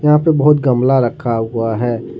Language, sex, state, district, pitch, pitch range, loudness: Hindi, male, Jharkhand, Ranchi, 125 Hz, 115-150 Hz, -15 LUFS